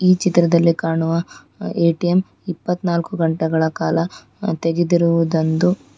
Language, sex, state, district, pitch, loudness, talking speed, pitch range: Kannada, female, Karnataka, Bangalore, 170 Hz, -18 LUFS, 90 wpm, 165-180 Hz